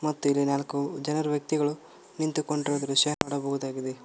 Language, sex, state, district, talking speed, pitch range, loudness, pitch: Kannada, male, Karnataka, Koppal, 135 wpm, 140-150 Hz, -28 LUFS, 145 Hz